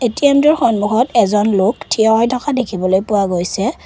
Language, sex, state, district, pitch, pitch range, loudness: Assamese, female, Assam, Kamrup Metropolitan, 220 Hz, 200-250 Hz, -14 LUFS